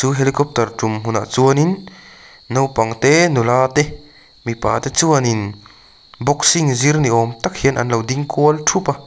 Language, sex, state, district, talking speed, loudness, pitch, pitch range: Mizo, male, Mizoram, Aizawl, 160 wpm, -16 LUFS, 135 Hz, 115-150 Hz